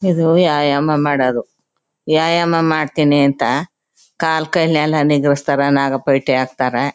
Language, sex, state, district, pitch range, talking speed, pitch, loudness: Kannada, female, Karnataka, Chamarajanagar, 140-160 Hz, 110 wpm, 145 Hz, -15 LUFS